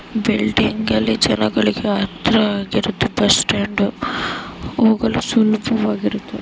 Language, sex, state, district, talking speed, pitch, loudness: Kannada, female, Karnataka, Raichur, 85 wpm, 200 Hz, -18 LUFS